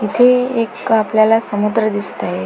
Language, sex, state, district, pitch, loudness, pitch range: Marathi, female, Maharashtra, Pune, 220 Hz, -15 LUFS, 210-230 Hz